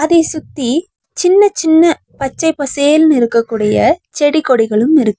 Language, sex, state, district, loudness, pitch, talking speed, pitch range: Tamil, female, Tamil Nadu, Nilgiris, -13 LUFS, 300 Hz, 125 wpm, 255-325 Hz